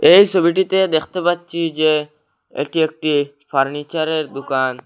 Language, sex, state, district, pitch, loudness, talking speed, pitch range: Bengali, male, Assam, Hailakandi, 155 Hz, -18 LUFS, 110 wpm, 145-170 Hz